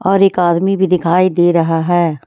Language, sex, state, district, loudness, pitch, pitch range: Hindi, female, Jharkhand, Ranchi, -13 LUFS, 175 Hz, 170-190 Hz